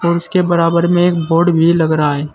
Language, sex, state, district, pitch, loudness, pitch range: Hindi, male, Uttar Pradesh, Saharanpur, 170 Hz, -13 LUFS, 160-175 Hz